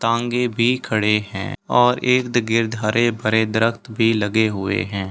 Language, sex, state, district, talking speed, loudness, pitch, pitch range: Hindi, male, Delhi, New Delhi, 140 wpm, -19 LUFS, 115 Hz, 105-120 Hz